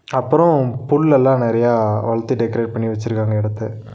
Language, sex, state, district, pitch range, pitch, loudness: Tamil, male, Tamil Nadu, Nilgiris, 110-130 Hz, 115 Hz, -17 LUFS